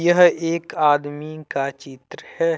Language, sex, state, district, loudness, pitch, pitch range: Hindi, male, Jharkhand, Deoghar, -20 LUFS, 155 Hz, 145-165 Hz